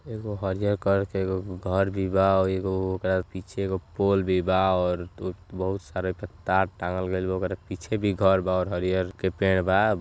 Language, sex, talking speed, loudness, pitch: Bhojpuri, male, 210 wpm, -26 LUFS, 95 Hz